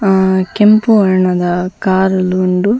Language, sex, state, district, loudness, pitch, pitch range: Tulu, female, Karnataka, Dakshina Kannada, -12 LUFS, 190 Hz, 185-200 Hz